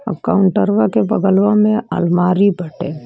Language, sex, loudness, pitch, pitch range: Bhojpuri, female, -15 LUFS, 195 Hz, 175-210 Hz